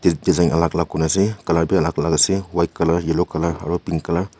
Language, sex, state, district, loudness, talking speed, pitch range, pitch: Nagamese, male, Nagaland, Kohima, -19 LUFS, 230 wpm, 80-95 Hz, 85 Hz